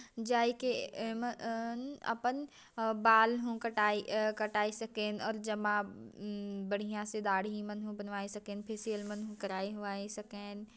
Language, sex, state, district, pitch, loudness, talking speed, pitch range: Chhattisgarhi, female, Chhattisgarh, Jashpur, 215 Hz, -36 LUFS, 135 wpm, 205-225 Hz